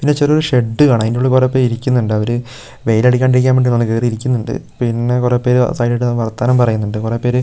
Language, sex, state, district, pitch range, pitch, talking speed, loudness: Malayalam, male, Kerala, Wayanad, 115-130 Hz, 125 Hz, 200 wpm, -14 LUFS